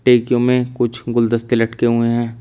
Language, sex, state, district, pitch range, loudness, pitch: Hindi, male, Uttar Pradesh, Shamli, 115-125 Hz, -17 LUFS, 120 Hz